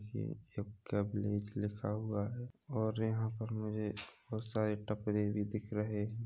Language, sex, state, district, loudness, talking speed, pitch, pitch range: Hindi, male, Chhattisgarh, Rajnandgaon, -39 LUFS, 165 wpm, 105 Hz, 105-110 Hz